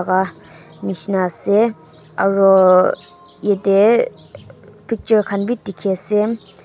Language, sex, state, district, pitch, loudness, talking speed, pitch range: Nagamese, female, Nagaland, Dimapur, 195 Hz, -17 LUFS, 90 wpm, 185-210 Hz